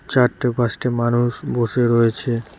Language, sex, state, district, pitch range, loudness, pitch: Bengali, male, West Bengal, Cooch Behar, 120-125 Hz, -19 LUFS, 120 Hz